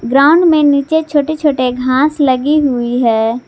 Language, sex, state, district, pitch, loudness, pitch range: Hindi, female, Jharkhand, Garhwa, 280 Hz, -12 LUFS, 250-305 Hz